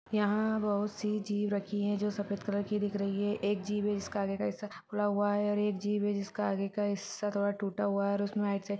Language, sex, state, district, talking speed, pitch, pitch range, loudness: Hindi, female, Chhattisgarh, Balrampur, 260 wpm, 205 Hz, 200-210 Hz, -33 LUFS